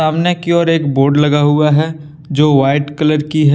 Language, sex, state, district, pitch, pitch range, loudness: Hindi, male, Jharkhand, Deoghar, 150 Hz, 145-155 Hz, -13 LUFS